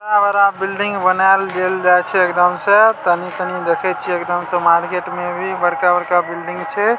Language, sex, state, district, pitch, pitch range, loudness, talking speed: Maithili, male, Bihar, Samastipur, 180 Hz, 175-200 Hz, -16 LUFS, 170 wpm